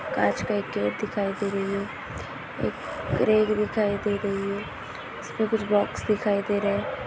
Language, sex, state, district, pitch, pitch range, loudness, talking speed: Hindi, female, Goa, North and South Goa, 205 Hz, 195-210 Hz, -27 LUFS, 185 wpm